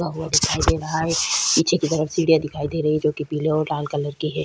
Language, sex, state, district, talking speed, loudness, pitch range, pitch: Hindi, female, Bihar, Vaishali, 270 wpm, -21 LUFS, 150-160 Hz, 155 Hz